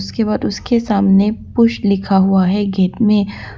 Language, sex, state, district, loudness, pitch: Hindi, female, Arunachal Pradesh, Papum Pare, -15 LUFS, 195 Hz